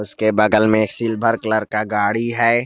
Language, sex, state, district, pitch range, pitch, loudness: Hindi, male, Jharkhand, Garhwa, 105-115 Hz, 110 Hz, -17 LUFS